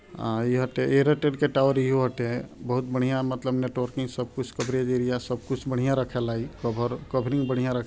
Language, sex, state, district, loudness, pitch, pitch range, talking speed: Bhojpuri, male, Bihar, Gopalganj, -26 LUFS, 130 Hz, 125-130 Hz, 135 wpm